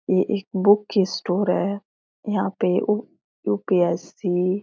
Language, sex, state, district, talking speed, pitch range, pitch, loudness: Hindi, female, Bihar, Jahanabad, 145 wpm, 185-205 Hz, 195 Hz, -22 LUFS